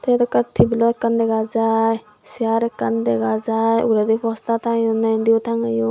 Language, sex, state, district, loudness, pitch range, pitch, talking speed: Chakma, female, Tripura, Dhalai, -19 LUFS, 220-230 Hz, 225 Hz, 170 wpm